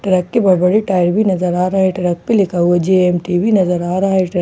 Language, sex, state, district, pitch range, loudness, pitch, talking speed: Hindi, female, Bihar, Katihar, 180-195 Hz, -14 LUFS, 185 Hz, 300 wpm